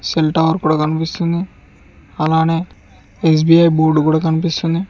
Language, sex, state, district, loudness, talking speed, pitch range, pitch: Telugu, male, Telangana, Mahabubabad, -15 LUFS, 110 wpm, 155-165 Hz, 160 Hz